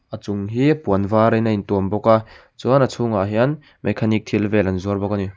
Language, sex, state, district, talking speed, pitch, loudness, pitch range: Mizo, male, Mizoram, Aizawl, 255 wpm, 110 Hz, -19 LUFS, 100-115 Hz